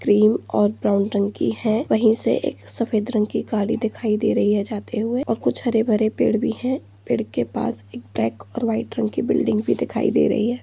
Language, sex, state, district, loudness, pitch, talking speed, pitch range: Hindi, female, Uttar Pradesh, Budaun, -21 LUFS, 220 Hz, 230 wpm, 205-230 Hz